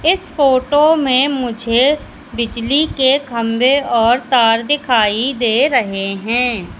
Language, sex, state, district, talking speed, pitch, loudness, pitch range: Hindi, female, Madhya Pradesh, Katni, 115 wpm, 250 Hz, -14 LUFS, 230-280 Hz